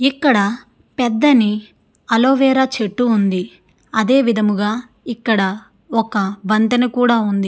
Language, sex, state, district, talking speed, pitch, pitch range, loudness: Telugu, female, Andhra Pradesh, Srikakulam, 95 wpm, 225 Hz, 210-250 Hz, -16 LUFS